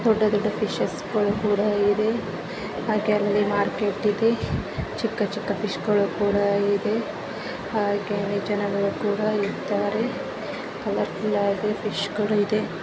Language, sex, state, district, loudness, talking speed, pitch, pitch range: Kannada, female, Karnataka, Bellary, -24 LUFS, 120 wpm, 205 Hz, 205-215 Hz